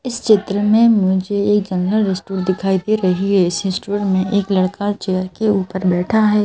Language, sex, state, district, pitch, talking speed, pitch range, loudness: Hindi, female, Madhya Pradesh, Bhopal, 200 Hz, 195 wpm, 185-210 Hz, -17 LUFS